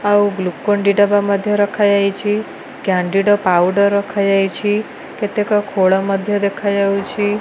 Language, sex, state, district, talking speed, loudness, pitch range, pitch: Odia, female, Odisha, Malkangiri, 95 wpm, -16 LUFS, 195-205 Hz, 200 Hz